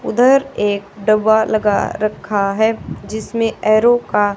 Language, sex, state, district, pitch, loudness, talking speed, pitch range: Hindi, female, Haryana, Charkhi Dadri, 215 Hz, -16 LUFS, 125 wpm, 205-225 Hz